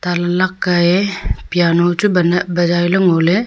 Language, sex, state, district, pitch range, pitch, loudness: Wancho, female, Arunachal Pradesh, Longding, 175-185 Hz, 175 Hz, -15 LUFS